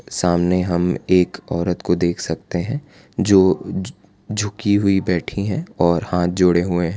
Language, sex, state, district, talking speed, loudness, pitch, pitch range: Hindi, male, Gujarat, Valsad, 165 wpm, -19 LUFS, 90 Hz, 85-100 Hz